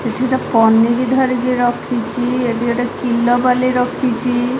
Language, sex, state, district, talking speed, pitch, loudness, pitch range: Odia, female, Odisha, Khordha, 105 wpm, 245 Hz, -16 LUFS, 240-250 Hz